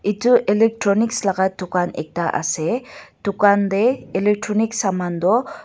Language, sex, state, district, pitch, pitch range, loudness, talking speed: Nagamese, female, Nagaland, Dimapur, 205 Hz, 185-230 Hz, -19 LUFS, 125 wpm